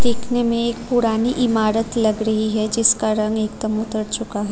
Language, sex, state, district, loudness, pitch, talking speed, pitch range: Hindi, female, Tripura, Unakoti, -19 LUFS, 220 Hz, 185 wpm, 215-235 Hz